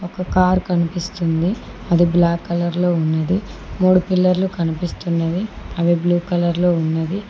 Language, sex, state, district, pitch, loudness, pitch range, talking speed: Telugu, female, Telangana, Mahabubabad, 175 Hz, -19 LUFS, 170-185 Hz, 115 wpm